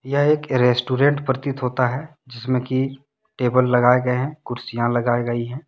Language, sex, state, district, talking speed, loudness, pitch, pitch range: Hindi, male, Jharkhand, Deoghar, 170 wpm, -20 LUFS, 130 Hz, 125-135 Hz